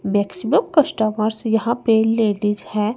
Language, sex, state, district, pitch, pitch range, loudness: Hindi, female, Chandigarh, Chandigarh, 220 Hz, 210-230 Hz, -19 LUFS